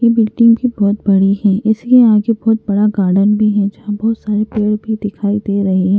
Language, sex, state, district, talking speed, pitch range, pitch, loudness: Hindi, female, Uttarakhand, Tehri Garhwal, 240 wpm, 200-225 Hz, 210 Hz, -13 LUFS